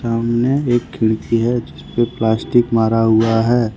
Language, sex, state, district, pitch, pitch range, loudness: Hindi, male, Jharkhand, Ranchi, 115 Hz, 110-120 Hz, -16 LUFS